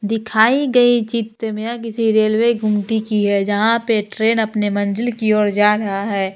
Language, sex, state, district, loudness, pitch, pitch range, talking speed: Hindi, female, Bihar, Muzaffarpur, -17 LUFS, 220 Hz, 210-230 Hz, 180 wpm